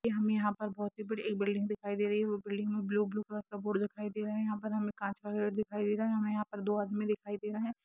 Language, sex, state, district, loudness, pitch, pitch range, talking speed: Hindi, female, Jharkhand, Sahebganj, -35 LUFS, 210 Hz, 205-215 Hz, 320 wpm